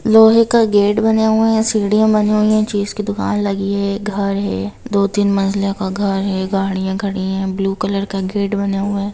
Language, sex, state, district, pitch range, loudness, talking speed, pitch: Hindi, female, Bihar, Sitamarhi, 195-210 Hz, -16 LUFS, 230 wpm, 200 Hz